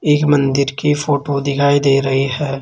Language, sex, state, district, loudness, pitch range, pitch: Hindi, male, Rajasthan, Jaipur, -15 LUFS, 140-145 Hz, 140 Hz